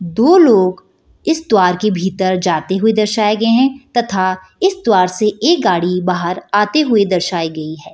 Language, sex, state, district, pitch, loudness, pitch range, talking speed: Hindi, female, Bihar, Jahanabad, 200 Hz, -14 LUFS, 180-230 Hz, 180 wpm